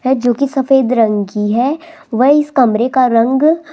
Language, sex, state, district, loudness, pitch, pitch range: Hindi, female, Rajasthan, Jaipur, -13 LUFS, 260 Hz, 235-280 Hz